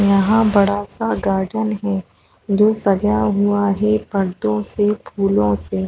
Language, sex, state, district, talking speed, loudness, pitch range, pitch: Hindi, female, Chhattisgarh, Raigarh, 130 wpm, -18 LUFS, 190-210 Hz, 200 Hz